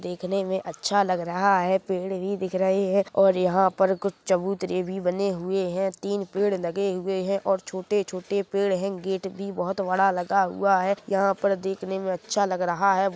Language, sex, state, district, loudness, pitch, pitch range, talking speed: Hindi, male, Chhattisgarh, Korba, -25 LUFS, 190 Hz, 185-195 Hz, 205 wpm